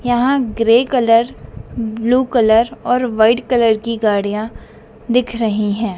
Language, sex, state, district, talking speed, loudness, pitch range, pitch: Hindi, female, Madhya Pradesh, Dhar, 130 wpm, -15 LUFS, 220-245 Hz, 230 Hz